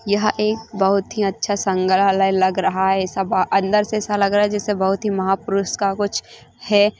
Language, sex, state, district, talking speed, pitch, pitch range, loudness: Hindi, female, Chhattisgarh, Rajnandgaon, 195 wpm, 200 Hz, 195-205 Hz, -19 LUFS